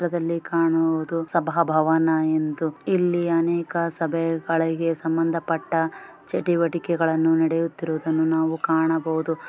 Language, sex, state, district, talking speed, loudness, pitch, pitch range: Kannada, female, Karnataka, Shimoga, 90 wpm, -23 LUFS, 165 Hz, 160-165 Hz